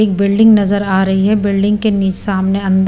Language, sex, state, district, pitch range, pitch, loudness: Hindi, female, Punjab, Pathankot, 195-205 Hz, 200 Hz, -13 LUFS